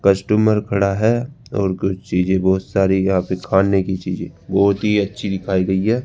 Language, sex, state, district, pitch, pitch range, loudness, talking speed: Hindi, male, Rajasthan, Jaipur, 95 Hz, 95-105 Hz, -18 LUFS, 190 wpm